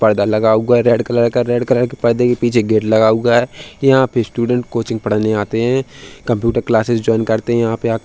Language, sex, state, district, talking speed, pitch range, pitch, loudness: Hindi, male, Uttar Pradesh, Hamirpur, 240 wpm, 110-120 Hz, 120 Hz, -15 LUFS